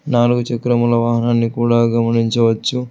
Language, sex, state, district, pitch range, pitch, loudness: Telugu, male, Telangana, Hyderabad, 115-120 Hz, 120 Hz, -16 LUFS